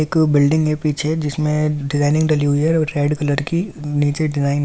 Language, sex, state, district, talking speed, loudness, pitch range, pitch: Hindi, male, Delhi, New Delhi, 220 wpm, -18 LUFS, 145-155 Hz, 150 Hz